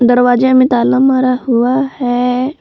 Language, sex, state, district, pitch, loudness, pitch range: Hindi, female, Jharkhand, Palamu, 250 Hz, -12 LUFS, 245-260 Hz